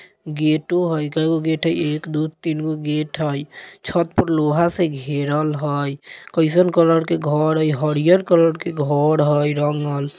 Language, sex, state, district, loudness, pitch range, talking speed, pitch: Bajjika, male, Bihar, Vaishali, -19 LUFS, 150-165 Hz, 165 wpm, 155 Hz